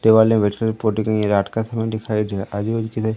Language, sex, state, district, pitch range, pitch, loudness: Hindi, male, Madhya Pradesh, Umaria, 105-110 Hz, 110 Hz, -20 LUFS